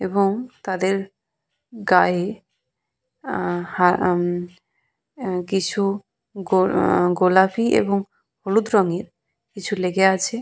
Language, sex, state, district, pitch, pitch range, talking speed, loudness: Bengali, female, West Bengal, Purulia, 190 Hz, 180-200 Hz, 90 wpm, -20 LUFS